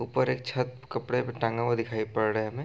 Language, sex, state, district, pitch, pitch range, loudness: Hindi, male, Bihar, East Champaran, 115 Hz, 110-125 Hz, -29 LUFS